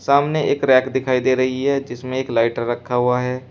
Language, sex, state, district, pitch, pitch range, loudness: Hindi, male, Uttar Pradesh, Shamli, 130 Hz, 125-130 Hz, -19 LUFS